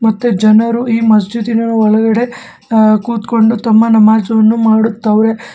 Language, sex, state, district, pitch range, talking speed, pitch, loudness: Kannada, male, Karnataka, Bangalore, 220-230 Hz, 120 wpm, 225 Hz, -11 LUFS